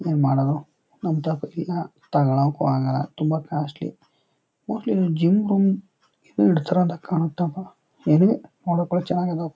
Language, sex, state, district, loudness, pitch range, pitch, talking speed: Kannada, male, Karnataka, Chamarajanagar, -23 LUFS, 145-180 Hz, 165 Hz, 100 wpm